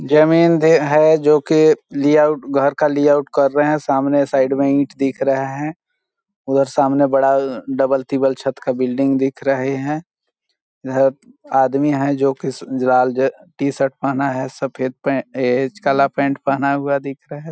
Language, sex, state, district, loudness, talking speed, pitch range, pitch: Hindi, male, Chhattisgarh, Balrampur, -17 LUFS, 170 wpm, 135-150 Hz, 140 Hz